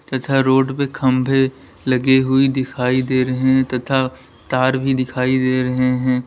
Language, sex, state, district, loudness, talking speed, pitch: Hindi, male, Uttar Pradesh, Lalitpur, -17 LUFS, 165 wpm, 130 Hz